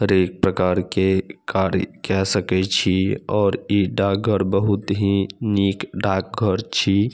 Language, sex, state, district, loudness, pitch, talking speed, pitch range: Maithili, male, Bihar, Saharsa, -20 LUFS, 95 Hz, 125 wpm, 95-100 Hz